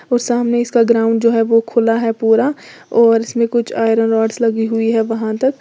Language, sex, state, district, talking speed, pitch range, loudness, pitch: Hindi, female, Uttar Pradesh, Lalitpur, 215 wpm, 225-235 Hz, -15 LUFS, 230 Hz